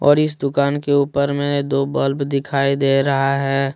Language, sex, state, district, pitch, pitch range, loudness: Hindi, male, Jharkhand, Deoghar, 140 Hz, 135-140 Hz, -18 LUFS